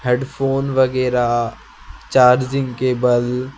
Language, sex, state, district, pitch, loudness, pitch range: Hindi, male, West Bengal, Alipurduar, 125 Hz, -17 LUFS, 125-135 Hz